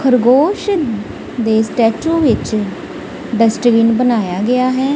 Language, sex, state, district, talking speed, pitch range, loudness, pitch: Punjabi, female, Punjab, Kapurthala, 95 wpm, 225-265 Hz, -14 LUFS, 240 Hz